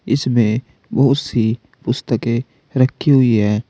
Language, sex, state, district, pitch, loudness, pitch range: Hindi, male, Uttar Pradesh, Saharanpur, 125 Hz, -17 LUFS, 115-135 Hz